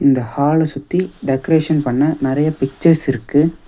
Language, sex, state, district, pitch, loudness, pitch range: Tamil, male, Tamil Nadu, Nilgiris, 145 Hz, -17 LUFS, 135-160 Hz